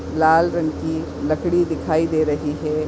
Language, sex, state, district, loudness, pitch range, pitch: Hindi, female, Maharashtra, Aurangabad, -20 LUFS, 155-165 Hz, 160 Hz